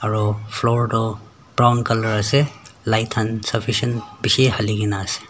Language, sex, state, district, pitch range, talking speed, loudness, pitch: Nagamese, male, Nagaland, Dimapur, 105-120 Hz, 145 wpm, -20 LUFS, 115 Hz